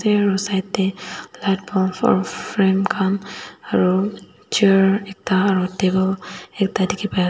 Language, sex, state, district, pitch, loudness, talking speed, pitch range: Nagamese, female, Nagaland, Dimapur, 190 Hz, -20 LUFS, 140 wpm, 190-200 Hz